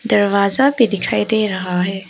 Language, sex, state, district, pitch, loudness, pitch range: Hindi, female, Arunachal Pradesh, Papum Pare, 200 Hz, -16 LUFS, 190-220 Hz